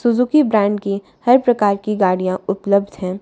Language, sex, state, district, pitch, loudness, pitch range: Hindi, female, Haryana, Charkhi Dadri, 200 Hz, -17 LUFS, 195-240 Hz